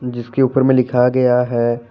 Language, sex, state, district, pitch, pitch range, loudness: Hindi, male, Jharkhand, Deoghar, 125 Hz, 120-130 Hz, -15 LUFS